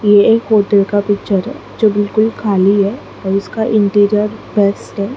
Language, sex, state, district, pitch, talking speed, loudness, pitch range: Hindi, female, Maharashtra, Mumbai Suburban, 205 Hz, 165 wpm, -14 LUFS, 200-215 Hz